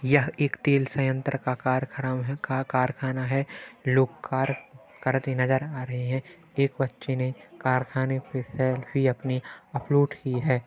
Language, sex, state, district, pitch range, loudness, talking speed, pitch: Hindi, male, Uttar Pradesh, Hamirpur, 130-140 Hz, -27 LUFS, 150 wpm, 130 Hz